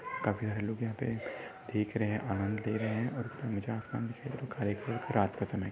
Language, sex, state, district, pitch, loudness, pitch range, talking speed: Hindi, male, Maharashtra, Dhule, 110 Hz, -35 LUFS, 105-120 Hz, 275 wpm